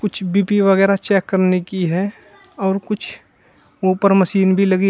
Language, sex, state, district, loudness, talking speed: Hindi, male, Uttar Pradesh, Shamli, -17 LUFS, 170 wpm